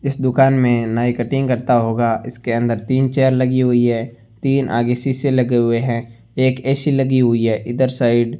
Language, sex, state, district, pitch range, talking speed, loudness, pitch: Hindi, male, Rajasthan, Bikaner, 115-130 Hz, 200 wpm, -17 LUFS, 120 Hz